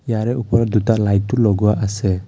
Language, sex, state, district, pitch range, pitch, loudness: Assamese, male, Assam, Kamrup Metropolitan, 100-115 Hz, 110 Hz, -17 LUFS